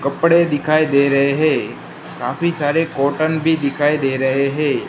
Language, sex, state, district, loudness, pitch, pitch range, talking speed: Hindi, female, Gujarat, Gandhinagar, -17 LUFS, 145 Hz, 140-155 Hz, 160 wpm